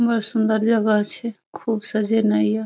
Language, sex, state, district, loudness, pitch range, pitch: Maithili, female, Bihar, Saharsa, -20 LUFS, 210-230 Hz, 220 Hz